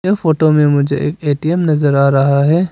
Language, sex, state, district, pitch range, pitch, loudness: Hindi, male, Arunachal Pradesh, Papum Pare, 140-165 Hz, 150 Hz, -13 LUFS